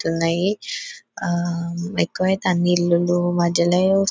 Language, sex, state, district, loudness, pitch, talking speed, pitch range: Telugu, female, Telangana, Nalgonda, -20 LUFS, 175 Hz, 100 wpm, 170-190 Hz